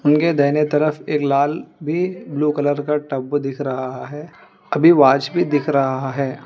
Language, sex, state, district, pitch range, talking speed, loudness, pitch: Hindi, male, Telangana, Hyderabad, 140-150 Hz, 175 wpm, -18 LUFS, 145 Hz